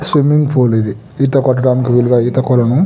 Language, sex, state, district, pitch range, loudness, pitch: Telugu, male, Telangana, Nalgonda, 120-140 Hz, -13 LUFS, 130 Hz